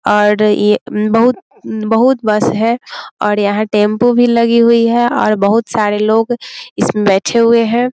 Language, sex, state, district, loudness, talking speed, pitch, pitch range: Hindi, female, Bihar, Muzaffarpur, -12 LUFS, 165 wpm, 220 Hz, 210-235 Hz